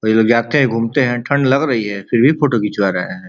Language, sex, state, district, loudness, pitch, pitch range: Bhojpuri, male, Uttar Pradesh, Ghazipur, -15 LUFS, 120 Hz, 110-140 Hz